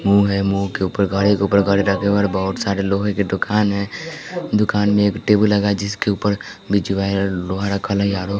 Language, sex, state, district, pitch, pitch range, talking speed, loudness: Hindi, male, Bihar, West Champaran, 100 Hz, 100-105 Hz, 185 wpm, -19 LUFS